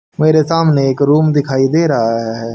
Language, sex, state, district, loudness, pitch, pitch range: Hindi, male, Haryana, Rohtak, -13 LUFS, 145 Hz, 130-155 Hz